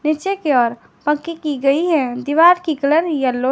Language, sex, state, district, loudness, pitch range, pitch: Hindi, female, Jharkhand, Garhwa, -17 LUFS, 270-325 Hz, 300 Hz